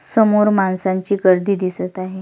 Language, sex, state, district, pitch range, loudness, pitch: Marathi, female, Maharashtra, Solapur, 185-200 Hz, -17 LUFS, 190 Hz